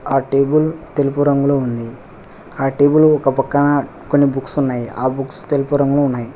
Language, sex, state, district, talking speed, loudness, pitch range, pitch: Telugu, male, Telangana, Hyderabad, 160 wpm, -16 LUFS, 135-145 Hz, 140 Hz